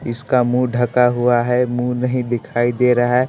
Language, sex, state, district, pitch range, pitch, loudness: Hindi, male, Bihar, West Champaran, 120-125 Hz, 125 Hz, -17 LUFS